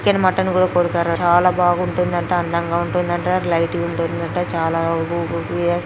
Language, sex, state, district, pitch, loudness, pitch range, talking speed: Telugu, male, Andhra Pradesh, Guntur, 175 Hz, -19 LUFS, 170-180 Hz, 115 wpm